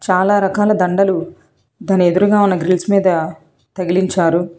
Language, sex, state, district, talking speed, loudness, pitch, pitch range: Telugu, female, Telangana, Hyderabad, 120 wpm, -15 LUFS, 185 Hz, 175-195 Hz